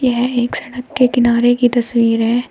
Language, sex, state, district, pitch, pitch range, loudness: Hindi, female, Uttar Pradesh, Shamli, 245 Hz, 235-250 Hz, -15 LUFS